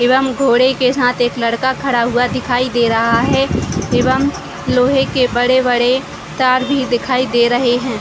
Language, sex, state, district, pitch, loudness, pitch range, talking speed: Hindi, female, Chhattisgarh, Raigarh, 250 Hz, -15 LUFS, 240-260 Hz, 165 wpm